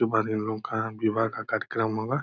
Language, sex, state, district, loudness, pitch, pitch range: Hindi, male, Bihar, Purnia, -28 LUFS, 110 Hz, 110-115 Hz